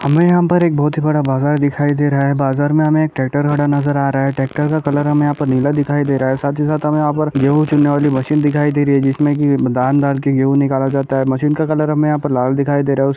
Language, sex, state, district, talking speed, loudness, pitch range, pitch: Hindi, male, Uttar Pradesh, Ghazipur, 280 wpm, -15 LUFS, 140-150 Hz, 145 Hz